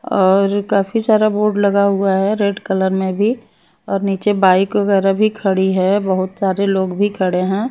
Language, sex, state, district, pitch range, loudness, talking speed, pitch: Hindi, female, Chhattisgarh, Raipur, 190-205 Hz, -16 LUFS, 185 wpm, 195 Hz